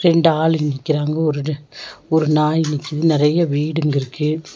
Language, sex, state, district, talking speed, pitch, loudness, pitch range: Tamil, female, Tamil Nadu, Nilgiris, 130 wpm, 155 Hz, -18 LUFS, 150-160 Hz